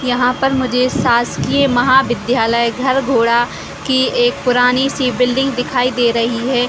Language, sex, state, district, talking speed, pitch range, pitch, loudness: Hindi, female, Chhattisgarh, Raigarh, 150 wpm, 240-265 Hz, 250 Hz, -15 LUFS